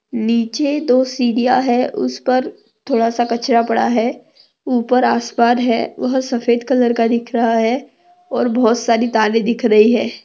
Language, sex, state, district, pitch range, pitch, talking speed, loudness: Hindi, female, Maharashtra, Chandrapur, 230-255 Hz, 240 Hz, 150 wpm, -16 LUFS